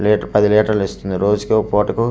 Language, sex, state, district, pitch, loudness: Telugu, male, Andhra Pradesh, Manyam, 105 Hz, -16 LUFS